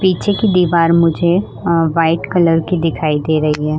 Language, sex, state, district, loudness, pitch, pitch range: Hindi, female, Uttar Pradesh, Budaun, -14 LUFS, 165 Hz, 155-175 Hz